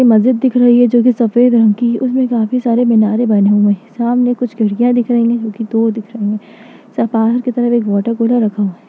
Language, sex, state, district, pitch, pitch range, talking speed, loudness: Hindi, female, Uttar Pradesh, Etah, 235 Hz, 220-245 Hz, 230 wpm, -13 LUFS